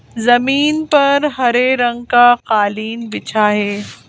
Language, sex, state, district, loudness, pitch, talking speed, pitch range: Hindi, female, Madhya Pradesh, Bhopal, -14 LUFS, 245 Hz, 115 wpm, 220-265 Hz